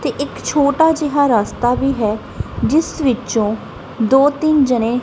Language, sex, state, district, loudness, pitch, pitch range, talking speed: Punjabi, female, Punjab, Kapurthala, -16 LUFS, 265 Hz, 230-290 Hz, 155 wpm